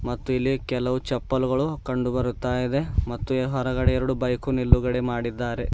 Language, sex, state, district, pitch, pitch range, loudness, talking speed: Kannada, male, Karnataka, Bidar, 125 Hz, 125-130 Hz, -25 LUFS, 145 wpm